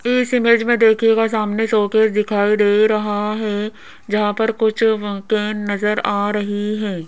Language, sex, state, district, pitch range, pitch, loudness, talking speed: Hindi, female, Rajasthan, Jaipur, 205-225 Hz, 215 Hz, -17 LUFS, 160 wpm